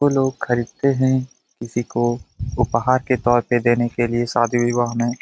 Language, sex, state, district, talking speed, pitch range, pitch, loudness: Hindi, male, Bihar, Jamui, 185 wpm, 120-130 Hz, 120 Hz, -20 LUFS